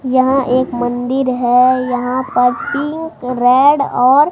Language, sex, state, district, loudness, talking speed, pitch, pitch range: Hindi, male, Bihar, Katihar, -14 LUFS, 125 wpm, 255 Hz, 250-270 Hz